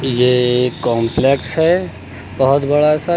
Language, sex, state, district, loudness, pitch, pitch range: Hindi, male, Uttar Pradesh, Lucknow, -15 LUFS, 130 Hz, 125-150 Hz